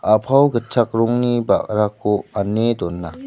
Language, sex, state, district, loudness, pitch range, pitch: Garo, male, Meghalaya, West Garo Hills, -18 LUFS, 105-120 Hz, 110 Hz